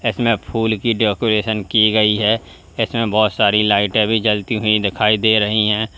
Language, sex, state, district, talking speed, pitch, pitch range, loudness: Hindi, male, Uttar Pradesh, Lalitpur, 180 wpm, 110 Hz, 105-110 Hz, -16 LUFS